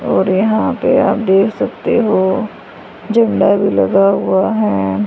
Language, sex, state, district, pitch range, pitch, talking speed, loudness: Hindi, female, Haryana, Charkhi Dadri, 190-220 Hz, 195 Hz, 140 wpm, -14 LUFS